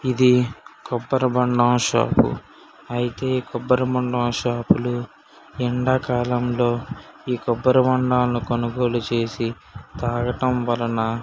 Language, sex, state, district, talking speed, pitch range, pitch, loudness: Telugu, male, Telangana, Karimnagar, 90 wpm, 120-125 Hz, 120 Hz, -21 LUFS